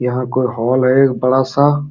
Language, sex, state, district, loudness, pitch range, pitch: Hindi, male, Uttar Pradesh, Jalaun, -15 LUFS, 125-135 Hz, 130 Hz